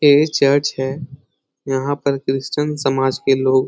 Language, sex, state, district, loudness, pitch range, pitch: Hindi, male, Bihar, Lakhisarai, -18 LUFS, 135-145 Hz, 135 Hz